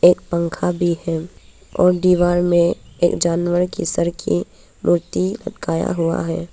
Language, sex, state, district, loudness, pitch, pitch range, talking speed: Hindi, female, Arunachal Pradesh, Papum Pare, -19 LUFS, 175 Hz, 165-175 Hz, 140 wpm